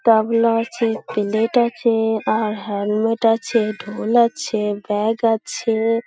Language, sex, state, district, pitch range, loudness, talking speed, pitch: Bengali, female, West Bengal, Malda, 215-230 Hz, -19 LUFS, 110 wpm, 225 Hz